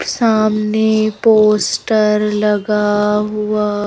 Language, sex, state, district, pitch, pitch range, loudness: Hindi, female, Madhya Pradesh, Bhopal, 210 Hz, 210-215 Hz, -14 LUFS